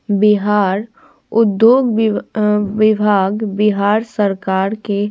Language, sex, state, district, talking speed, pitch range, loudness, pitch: Hindi, female, Bihar, Patna, 105 wpm, 205-220 Hz, -15 LUFS, 210 Hz